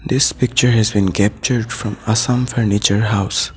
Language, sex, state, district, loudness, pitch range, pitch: English, male, Assam, Sonitpur, -16 LUFS, 105-125 Hz, 110 Hz